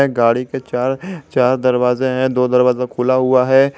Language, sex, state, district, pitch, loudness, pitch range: Hindi, male, Jharkhand, Garhwa, 130 Hz, -16 LUFS, 125-130 Hz